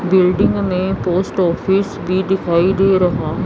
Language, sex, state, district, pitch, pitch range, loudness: Hindi, female, Chandigarh, Chandigarh, 185 Hz, 180-190 Hz, -16 LUFS